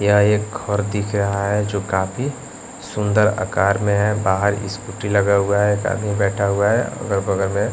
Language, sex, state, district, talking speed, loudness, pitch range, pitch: Hindi, male, Bihar, West Champaran, 195 wpm, -19 LUFS, 100-105 Hz, 100 Hz